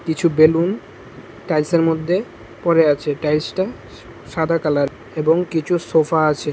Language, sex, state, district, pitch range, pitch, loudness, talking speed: Bengali, male, Tripura, West Tripura, 155-170 Hz, 160 Hz, -18 LUFS, 145 wpm